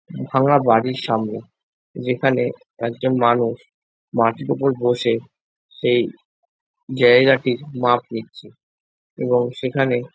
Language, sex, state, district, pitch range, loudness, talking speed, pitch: Bengali, male, West Bengal, Jhargram, 120-135 Hz, -19 LUFS, 90 wpm, 125 Hz